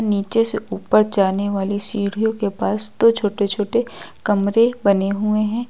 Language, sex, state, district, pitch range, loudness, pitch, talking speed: Hindi, female, Uttar Pradesh, Lucknow, 200-220 Hz, -19 LUFS, 210 Hz, 160 wpm